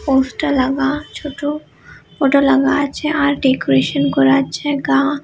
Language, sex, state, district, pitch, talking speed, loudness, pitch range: Bengali, female, West Bengal, Malda, 275 Hz, 135 wpm, -16 LUFS, 260-290 Hz